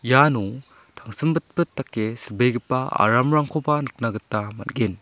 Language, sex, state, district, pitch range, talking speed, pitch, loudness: Garo, male, Meghalaya, South Garo Hills, 110-145 Hz, 95 wpm, 125 Hz, -22 LUFS